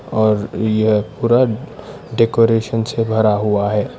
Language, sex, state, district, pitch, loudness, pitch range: Hindi, male, Karnataka, Bangalore, 110 Hz, -16 LUFS, 105-115 Hz